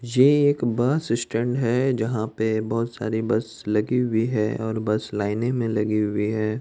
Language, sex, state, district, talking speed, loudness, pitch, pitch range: Hindi, male, Bihar, Madhepura, 180 wpm, -23 LUFS, 110 Hz, 110-120 Hz